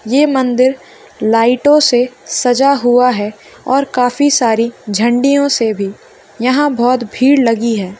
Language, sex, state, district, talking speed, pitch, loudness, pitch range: Hindi, female, Bihar, Bhagalpur, 135 wpm, 245 Hz, -13 LUFS, 230-270 Hz